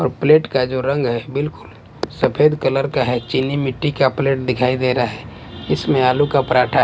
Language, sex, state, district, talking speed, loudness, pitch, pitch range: Hindi, male, Bihar, West Champaran, 210 wpm, -18 LUFS, 130 Hz, 125-140 Hz